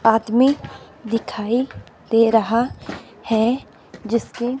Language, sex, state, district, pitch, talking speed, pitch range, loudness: Hindi, female, Himachal Pradesh, Shimla, 230 Hz, 80 wpm, 225-245 Hz, -20 LUFS